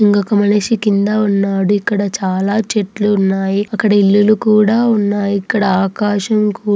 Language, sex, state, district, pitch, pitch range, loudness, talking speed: Telugu, female, Andhra Pradesh, Anantapur, 205 Hz, 200-210 Hz, -14 LUFS, 140 wpm